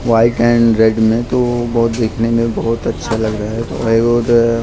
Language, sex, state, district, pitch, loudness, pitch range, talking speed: Hindi, male, Maharashtra, Mumbai Suburban, 115 Hz, -14 LUFS, 110-120 Hz, 195 wpm